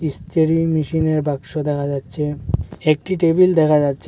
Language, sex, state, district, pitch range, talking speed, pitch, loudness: Bengali, male, Assam, Hailakandi, 145-160 Hz, 130 wpm, 155 Hz, -18 LUFS